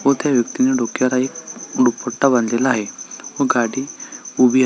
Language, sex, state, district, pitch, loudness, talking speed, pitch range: Marathi, male, Maharashtra, Solapur, 130 Hz, -18 LUFS, 155 wpm, 120-135 Hz